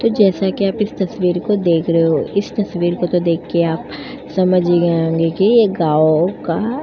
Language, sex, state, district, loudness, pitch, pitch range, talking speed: Hindi, female, Uttar Pradesh, Jyotiba Phule Nagar, -16 LUFS, 175 Hz, 165-200 Hz, 230 wpm